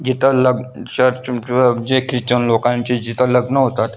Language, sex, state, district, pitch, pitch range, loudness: Marathi, male, Maharashtra, Solapur, 125 Hz, 120-130 Hz, -16 LUFS